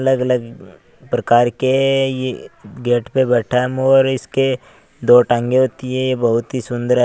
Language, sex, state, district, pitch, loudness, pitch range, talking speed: Hindi, male, Rajasthan, Churu, 125 Hz, -17 LUFS, 120-130 Hz, 155 wpm